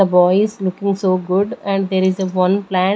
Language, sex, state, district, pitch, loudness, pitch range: English, female, Maharashtra, Gondia, 190 Hz, -17 LUFS, 185-200 Hz